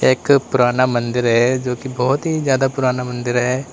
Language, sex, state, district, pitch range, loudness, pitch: Hindi, male, Uttar Pradesh, Lalitpur, 125-130 Hz, -17 LUFS, 125 Hz